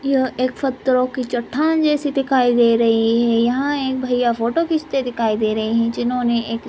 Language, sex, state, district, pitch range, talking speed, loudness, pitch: Hindi, female, Maharashtra, Nagpur, 230-270 Hz, 190 wpm, -18 LUFS, 250 Hz